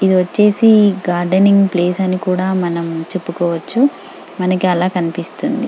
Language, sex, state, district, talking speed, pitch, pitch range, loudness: Telugu, female, Telangana, Karimnagar, 115 wpm, 185 Hz, 175-200 Hz, -15 LUFS